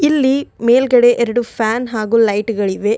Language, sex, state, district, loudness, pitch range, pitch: Kannada, female, Karnataka, Bidar, -15 LUFS, 220-250 Hz, 235 Hz